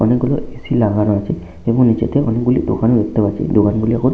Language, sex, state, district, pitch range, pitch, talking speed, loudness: Bengali, male, West Bengal, Malda, 105-125 Hz, 115 Hz, 230 wpm, -16 LUFS